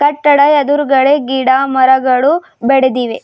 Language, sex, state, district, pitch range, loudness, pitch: Kannada, female, Karnataka, Bidar, 260-290 Hz, -11 LUFS, 270 Hz